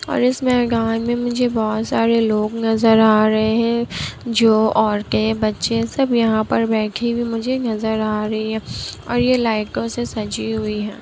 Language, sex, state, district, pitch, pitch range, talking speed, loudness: Hindi, female, Bihar, Kishanganj, 225 Hz, 215-235 Hz, 180 wpm, -18 LUFS